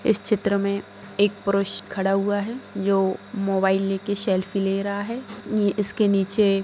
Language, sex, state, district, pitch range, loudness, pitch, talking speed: Hindi, female, Bihar, East Champaran, 195-210 Hz, -24 LUFS, 200 Hz, 170 wpm